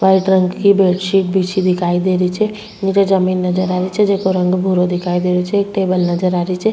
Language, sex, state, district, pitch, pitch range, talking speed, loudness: Rajasthani, female, Rajasthan, Churu, 185 Hz, 180-195 Hz, 240 wpm, -15 LUFS